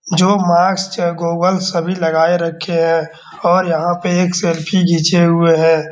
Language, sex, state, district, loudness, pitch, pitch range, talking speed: Hindi, male, Bihar, Darbhanga, -14 LUFS, 170 Hz, 165-180 Hz, 140 wpm